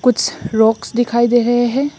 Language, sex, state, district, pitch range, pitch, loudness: Hindi, female, Assam, Hailakandi, 230-245 Hz, 240 Hz, -15 LUFS